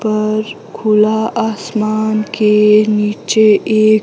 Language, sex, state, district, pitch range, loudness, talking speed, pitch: Hindi, female, Himachal Pradesh, Shimla, 210-215 Hz, -13 LUFS, 120 wpm, 215 Hz